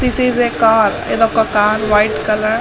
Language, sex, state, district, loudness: Telugu, female, Andhra Pradesh, Guntur, -14 LUFS